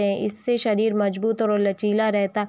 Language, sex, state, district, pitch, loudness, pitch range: Hindi, female, Chhattisgarh, Raigarh, 210 Hz, -22 LUFS, 205-220 Hz